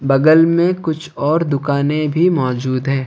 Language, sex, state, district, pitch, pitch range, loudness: Hindi, male, Odisha, Khordha, 150 Hz, 135-165 Hz, -16 LUFS